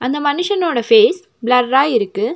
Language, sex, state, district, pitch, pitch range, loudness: Tamil, female, Tamil Nadu, Nilgiris, 340 Hz, 260-405 Hz, -15 LUFS